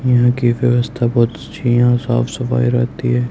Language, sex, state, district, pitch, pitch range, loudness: Hindi, male, Haryana, Rohtak, 120 Hz, 120-125 Hz, -16 LUFS